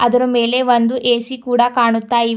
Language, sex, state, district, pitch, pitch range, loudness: Kannada, female, Karnataka, Bidar, 240 Hz, 235-250 Hz, -15 LUFS